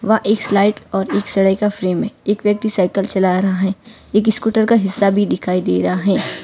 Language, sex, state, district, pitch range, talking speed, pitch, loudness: Hindi, female, Gujarat, Valsad, 190-210 Hz, 215 wpm, 200 Hz, -17 LUFS